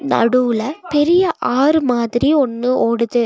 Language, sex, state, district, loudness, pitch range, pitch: Tamil, female, Tamil Nadu, Nilgiris, -16 LUFS, 235-295 Hz, 255 Hz